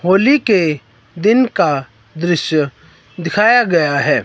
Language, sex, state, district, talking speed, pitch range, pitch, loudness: Hindi, male, Himachal Pradesh, Shimla, 115 wpm, 145-200 Hz, 170 Hz, -14 LUFS